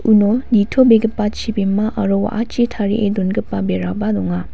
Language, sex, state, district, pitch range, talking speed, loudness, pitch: Garo, female, Meghalaya, West Garo Hills, 190-225 Hz, 120 wpm, -17 LUFS, 210 Hz